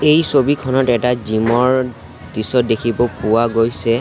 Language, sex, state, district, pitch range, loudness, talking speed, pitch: Assamese, male, Assam, Sonitpur, 115-130 Hz, -16 LUFS, 135 wpm, 120 Hz